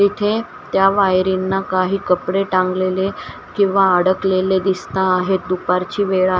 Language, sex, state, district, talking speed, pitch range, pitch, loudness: Marathi, female, Maharashtra, Washim, 115 wpm, 185-195 Hz, 190 Hz, -17 LUFS